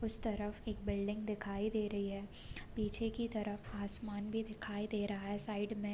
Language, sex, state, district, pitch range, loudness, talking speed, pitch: Hindi, female, Bihar, Sitamarhi, 205-215 Hz, -37 LUFS, 200 wpm, 210 Hz